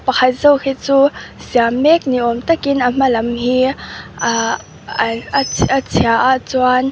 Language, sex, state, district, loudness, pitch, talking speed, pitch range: Mizo, female, Mizoram, Aizawl, -15 LUFS, 255 Hz, 165 wpm, 240-270 Hz